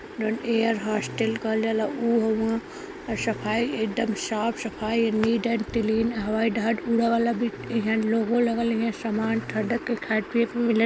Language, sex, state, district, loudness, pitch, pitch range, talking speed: Hindi, female, Uttar Pradesh, Varanasi, -25 LUFS, 225 Hz, 220-230 Hz, 100 wpm